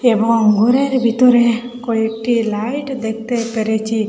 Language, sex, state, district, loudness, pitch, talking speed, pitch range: Bengali, female, Assam, Hailakandi, -16 LUFS, 230 Hz, 105 wpm, 220-245 Hz